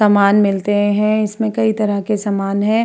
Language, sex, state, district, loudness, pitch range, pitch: Hindi, female, Uttar Pradesh, Hamirpur, -16 LUFS, 205-215 Hz, 210 Hz